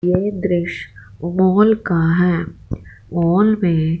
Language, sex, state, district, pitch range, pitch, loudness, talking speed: Hindi, female, Punjab, Fazilka, 165-190 Hz, 175 Hz, -17 LUFS, 105 wpm